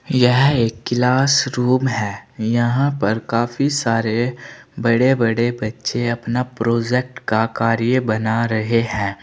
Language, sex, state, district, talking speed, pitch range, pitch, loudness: Hindi, male, Uttar Pradesh, Saharanpur, 115 wpm, 115-125 Hz, 120 Hz, -18 LUFS